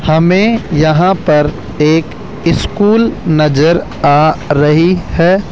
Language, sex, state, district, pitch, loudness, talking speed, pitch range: Hindi, male, Rajasthan, Jaipur, 160 Hz, -11 LUFS, 100 wpm, 150-185 Hz